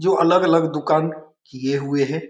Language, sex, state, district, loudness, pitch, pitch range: Hindi, male, Bihar, Saran, -19 LUFS, 155 Hz, 140-165 Hz